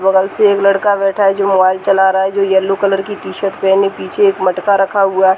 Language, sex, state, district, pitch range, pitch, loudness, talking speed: Hindi, female, Bihar, Gaya, 190-200 Hz, 195 Hz, -13 LUFS, 270 wpm